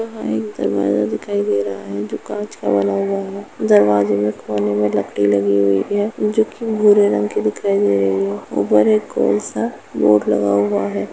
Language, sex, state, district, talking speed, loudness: Hindi, female, Uttar Pradesh, Etah, 200 wpm, -17 LUFS